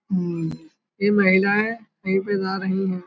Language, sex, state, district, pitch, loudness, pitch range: Hindi, male, Uttar Pradesh, Budaun, 195 Hz, -22 LUFS, 190-205 Hz